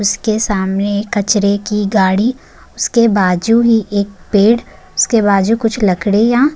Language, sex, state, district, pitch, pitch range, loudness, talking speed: Hindi, female, Maharashtra, Chandrapur, 205 Hz, 200-225 Hz, -14 LUFS, 145 wpm